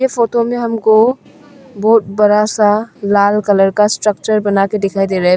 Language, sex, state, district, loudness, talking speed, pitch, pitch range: Hindi, female, Arunachal Pradesh, Longding, -13 LUFS, 180 wpm, 210 Hz, 200-230 Hz